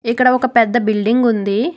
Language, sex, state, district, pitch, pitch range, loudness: Telugu, female, Telangana, Hyderabad, 235 Hz, 220-250 Hz, -15 LUFS